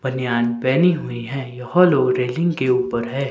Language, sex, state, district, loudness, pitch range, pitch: Hindi, male, Himachal Pradesh, Shimla, -19 LUFS, 125-140 Hz, 130 Hz